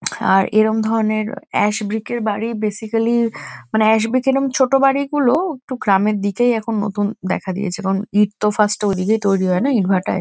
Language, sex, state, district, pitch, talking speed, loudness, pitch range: Bengali, female, West Bengal, Kolkata, 215 Hz, 180 wpm, -18 LUFS, 205-235 Hz